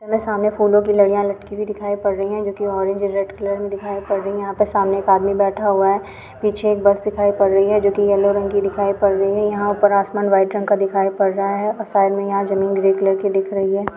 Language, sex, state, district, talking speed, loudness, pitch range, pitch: Hindi, female, Chhattisgarh, Bilaspur, 280 wpm, -18 LUFS, 195-205 Hz, 200 Hz